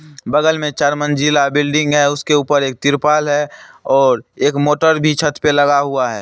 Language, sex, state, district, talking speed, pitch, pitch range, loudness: Hindi, male, Bihar, Supaul, 195 wpm, 150 Hz, 145-150 Hz, -15 LUFS